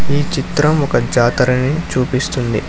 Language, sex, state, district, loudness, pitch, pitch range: Telugu, male, Telangana, Hyderabad, -16 LUFS, 135 Hz, 125-145 Hz